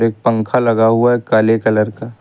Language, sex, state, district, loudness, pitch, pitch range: Hindi, male, Uttar Pradesh, Lucknow, -14 LUFS, 115 Hz, 110-115 Hz